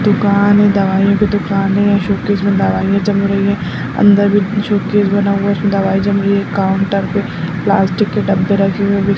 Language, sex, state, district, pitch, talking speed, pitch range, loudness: Kumaoni, male, Uttarakhand, Uttarkashi, 200 Hz, 200 wpm, 195-205 Hz, -13 LUFS